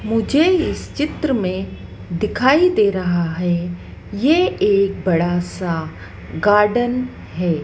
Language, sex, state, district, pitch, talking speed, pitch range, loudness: Hindi, female, Madhya Pradesh, Dhar, 200 Hz, 110 wpm, 175-250 Hz, -18 LUFS